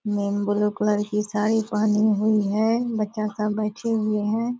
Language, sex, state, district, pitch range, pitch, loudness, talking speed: Hindi, female, Bihar, Purnia, 210-215 Hz, 210 Hz, -23 LUFS, 170 wpm